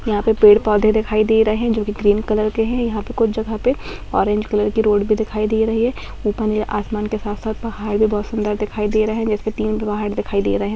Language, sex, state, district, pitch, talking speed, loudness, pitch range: Hindi, female, Bihar, Purnia, 215 Hz, 255 wpm, -18 LUFS, 210-220 Hz